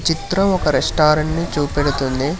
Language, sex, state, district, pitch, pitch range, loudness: Telugu, male, Telangana, Hyderabad, 155 Hz, 145-165 Hz, -18 LUFS